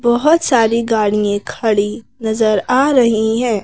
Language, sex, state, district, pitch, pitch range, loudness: Hindi, female, Madhya Pradesh, Bhopal, 225 Hz, 215-240 Hz, -15 LUFS